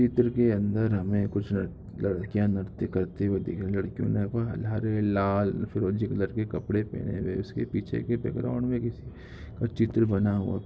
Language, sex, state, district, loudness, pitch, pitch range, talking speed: Hindi, male, Bihar, Samastipur, -28 LUFS, 105 Hz, 100-115 Hz, 185 wpm